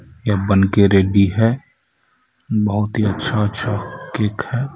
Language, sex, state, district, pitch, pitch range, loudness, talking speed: Hindi, male, Jharkhand, Ranchi, 105 Hz, 100-110 Hz, -17 LUFS, 125 wpm